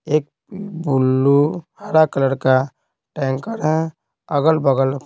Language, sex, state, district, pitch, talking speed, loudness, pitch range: Hindi, male, Bihar, Patna, 150 Hz, 95 wpm, -18 LUFS, 135-160 Hz